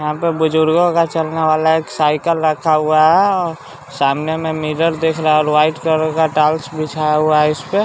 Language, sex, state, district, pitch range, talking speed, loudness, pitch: Hindi, male, Bihar, West Champaran, 155-160 Hz, 215 wpm, -15 LUFS, 155 Hz